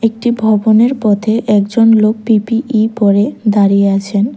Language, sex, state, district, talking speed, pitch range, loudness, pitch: Bengali, female, Tripura, West Tripura, 125 wpm, 205-225 Hz, -12 LUFS, 220 Hz